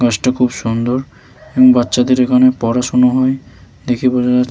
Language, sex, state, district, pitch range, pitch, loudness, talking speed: Bengali, male, West Bengal, Malda, 120-130 Hz, 125 Hz, -13 LUFS, 160 wpm